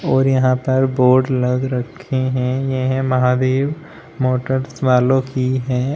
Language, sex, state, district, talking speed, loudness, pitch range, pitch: Hindi, male, Uttar Pradesh, Shamli, 130 wpm, -17 LUFS, 130-135 Hz, 130 Hz